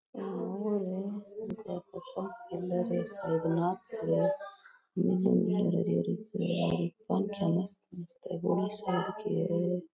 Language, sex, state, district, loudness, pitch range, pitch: Rajasthani, female, Rajasthan, Nagaur, -32 LUFS, 175-205 Hz, 185 Hz